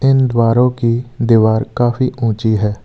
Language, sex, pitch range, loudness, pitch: Hindi, male, 110-125 Hz, -14 LUFS, 120 Hz